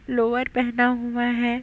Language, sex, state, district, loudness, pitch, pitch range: Hindi, female, Chhattisgarh, Raigarh, -22 LUFS, 245 Hz, 240-250 Hz